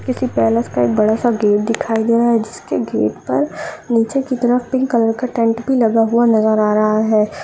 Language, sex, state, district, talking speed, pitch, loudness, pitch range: Hindi, female, Uttar Pradesh, Budaun, 225 wpm, 230 Hz, -16 LUFS, 215-250 Hz